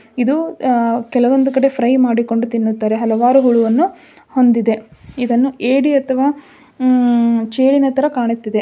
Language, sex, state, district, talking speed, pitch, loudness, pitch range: Kannada, female, Karnataka, Dharwad, 125 wpm, 250 Hz, -15 LUFS, 230-270 Hz